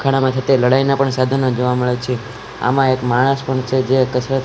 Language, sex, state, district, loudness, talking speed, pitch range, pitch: Gujarati, male, Gujarat, Gandhinagar, -16 LUFS, 215 wpm, 125-135 Hz, 130 Hz